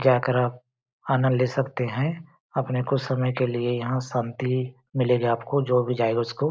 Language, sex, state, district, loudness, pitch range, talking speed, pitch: Hindi, male, Chhattisgarh, Balrampur, -25 LUFS, 125-130 Hz, 185 wpm, 125 Hz